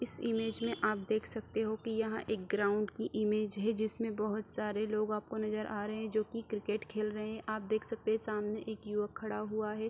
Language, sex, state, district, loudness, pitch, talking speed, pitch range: Hindi, female, Bihar, Supaul, -36 LUFS, 215 Hz, 235 wpm, 210-220 Hz